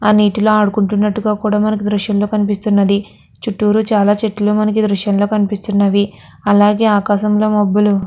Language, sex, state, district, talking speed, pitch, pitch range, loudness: Telugu, female, Andhra Pradesh, Guntur, 155 wpm, 210 Hz, 205-210 Hz, -14 LUFS